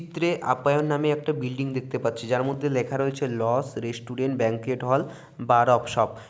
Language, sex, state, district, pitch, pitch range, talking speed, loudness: Bengali, male, West Bengal, Malda, 130 Hz, 120-145 Hz, 190 wpm, -25 LUFS